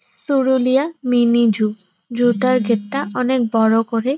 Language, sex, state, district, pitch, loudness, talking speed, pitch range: Bengali, female, West Bengal, Purulia, 245 Hz, -17 LUFS, 155 wpm, 225-260 Hz